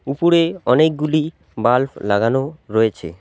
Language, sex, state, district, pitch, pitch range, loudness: Bengali, male, West Bengal, Alipurduar, 130 Hz, 110-155 Hz, -18 LUFS